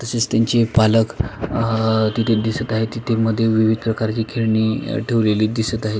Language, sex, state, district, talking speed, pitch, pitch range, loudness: Marathi, male, Maharashtra, Pune, 150 wpm, 110 Hz, 110-115 Hz, -19 LUFS